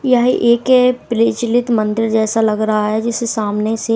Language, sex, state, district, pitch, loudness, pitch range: Hindi, female, Himachal Pradesh, Shimla, 230 Hz, -15 LUFS, 220-235 Hz